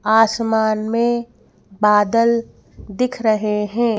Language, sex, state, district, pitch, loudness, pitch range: Hindi, female, Madhya Pradesh, Bhopal, 225 Hz, -18 LUFS, 215-235 Hz